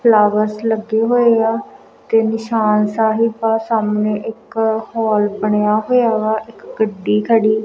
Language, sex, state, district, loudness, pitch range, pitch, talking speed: Punjabi, female, Punjab, Kapurthala, -16 LUFS, 210-225 Hz, 220 Hz, 140 wpm